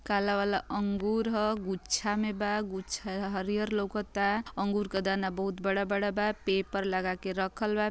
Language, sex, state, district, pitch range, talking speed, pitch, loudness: Bhojpuri, female, Uttar Pradesh, Ghazipur, 195-210 Hz, 175 wpm, 200 Hz, -31 LUFS